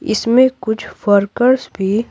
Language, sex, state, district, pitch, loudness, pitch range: Hindi, female, Bihar, Patna, 220 Hz, -15 LUFS, 205-250 Hz